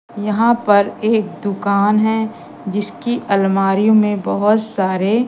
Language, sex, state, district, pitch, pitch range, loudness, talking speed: Hindi, female, Madhya Pradesh, Katni, 210 Hz, 200-220 Hz, -16 LUFS, 115 wpm